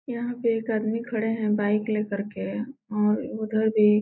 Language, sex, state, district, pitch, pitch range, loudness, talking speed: Hindi, female, Bihar, Gopalganj, 220 Hz, 210-230 Hz, -26 LUFS, 195 wpm